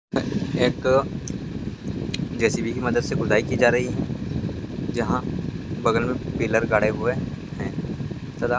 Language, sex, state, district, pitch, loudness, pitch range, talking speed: Hindi, male, Andhra Pradesh, Krishna, 120 Hz, -24 LUFS, 115-125 Hz, 135 wpm